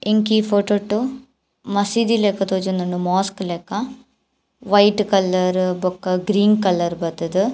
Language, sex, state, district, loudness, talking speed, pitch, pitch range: Tulu, female, Karnataka, Dakshina Kannada, -19 LUFS, 110 wpm, 200 Hz, 185-215 Hz